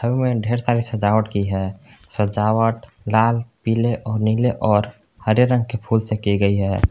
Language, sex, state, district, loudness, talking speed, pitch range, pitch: Hindi, male, Jharkhand, Palamu, -20 LUFS, 180 wpm, 105-115 Hz, 110 Hz